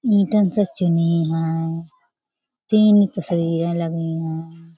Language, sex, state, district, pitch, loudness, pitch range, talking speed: Hindi, female, Uttar Pradesh, Budaun, 170 Hz, -19 LUFS, 165-205 Hz, 100 wpm